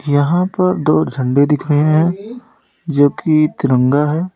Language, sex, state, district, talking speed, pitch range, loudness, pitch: Hindi, male, Uttar Pradesh, Lalitpur, 150 wpm, 145-175 Hz, -14 LUFS, 155 Hz